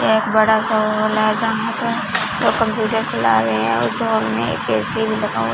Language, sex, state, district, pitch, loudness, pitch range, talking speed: Hindi, female, Punjab, Fazilka, 215 Hz, -18 LUFS, 140-220 Hz, 215 wpm